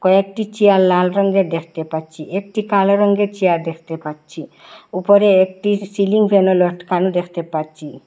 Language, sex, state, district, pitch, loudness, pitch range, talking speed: Bengali, female, Assam, Hailakandi, 185 Hz, -16 LUFS, 165-200 Hz, 140 wpm